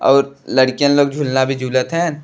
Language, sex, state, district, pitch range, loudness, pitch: Bhojpuri, male, Uttar Pradesh, Deoria, 130-145 Hz, -16 LUFS, 140 Hz